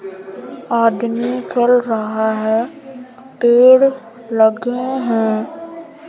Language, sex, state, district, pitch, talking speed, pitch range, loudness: Hindi, female, Madhya Pradesh, Umaria, 240 Hz, 70 wpm, 225-260 Hz, -15 LUFS